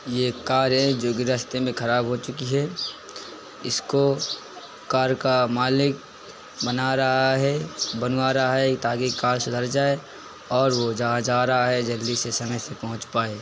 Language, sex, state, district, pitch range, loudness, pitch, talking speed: Hindi, male, Bihar, Gopalganj, 120-130 Hz, -23 LUFS, 125 Hz, 165 wpm